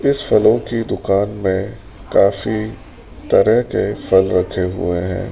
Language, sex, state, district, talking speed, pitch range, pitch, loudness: Hindi, male, Rajasthan, Jaipur, 135 wpm, 95-110 Hz, 100 Hz, -17 LUFS